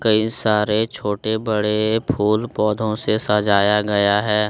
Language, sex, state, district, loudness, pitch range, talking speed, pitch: Hindi, male, Jharkhand, Deoghar, -19 LUFS, 105-110 Hz, 135 wpm, 105 Hz